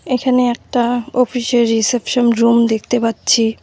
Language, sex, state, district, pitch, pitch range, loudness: Bengali, female, West Bengal, Cooch Behar, 240 Hz, 230-250 Hz, -15 LUFS